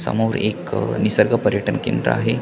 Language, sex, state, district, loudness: Marathi, male, Maharashtra, Washim, -20 LUFS